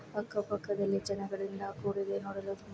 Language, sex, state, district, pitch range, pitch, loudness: Kannada, female, Karnataka, Bellary, 195-205 Hz, 200 Hz, -36 LUFS